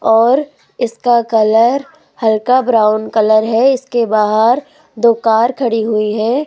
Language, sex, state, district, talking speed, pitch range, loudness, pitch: Hindi, female, Rajasthan, Jaipur, 130 wpm, 220-255 Hz, -13 LUFS, 230 Hz